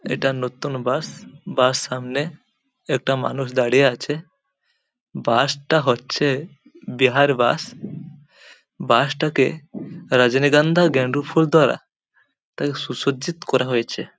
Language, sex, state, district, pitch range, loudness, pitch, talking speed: Bengali, male, West Bengal, Paschim Medinipur, 125-155 Hz, -20 LUFS, 135 Hz, 115 wpm